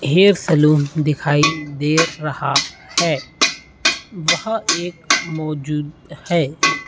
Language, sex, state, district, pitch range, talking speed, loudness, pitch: Hindi, male, Uttar Pradesh, Etah, 145-170 Hz, 85 wpm, -18 LUFS, 155 Hz